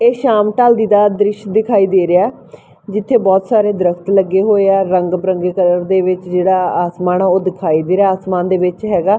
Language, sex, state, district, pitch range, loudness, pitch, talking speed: Punjabi, female, Punjab, Fazilka, 180-205 Hz, -13 LUFS, 190 Hz, 195 wpm